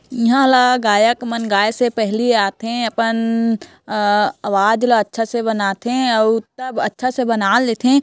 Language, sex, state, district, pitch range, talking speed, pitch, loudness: Hindi, female, Chhattisgarh, Korba, 215-245 Hz, 165 wpm, 230 Hz, -17 LUFS